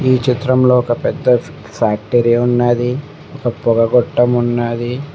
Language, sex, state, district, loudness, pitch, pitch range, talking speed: Telugu, male, Telangana, Mahabubabad, -15 LUFS, 120 Hz, 120-130 Hz, 115 wpm